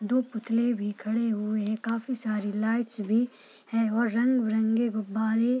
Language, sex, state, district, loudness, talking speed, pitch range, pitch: Hindi, female, Bihar, Purnia, -28 LUFS, 160 wpm, 215-235 Hz, 225 Hz